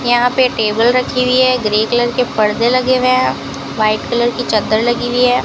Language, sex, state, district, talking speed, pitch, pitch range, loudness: Hindi, female, Rajasthan, Bikaner, 220 wpm, 240 Hz, 225-250 Hz, -14 LUFS